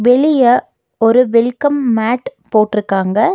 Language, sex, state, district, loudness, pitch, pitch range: Tamil, female, Tamil Nadu, Nilgiris, -13 LUFS, 240 Hz, 215-260 Hz